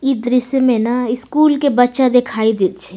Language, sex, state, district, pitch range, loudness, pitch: Maithili, female, Bihar, Samastipur, 230-265 Hz, -15 LUFS, 250 Hz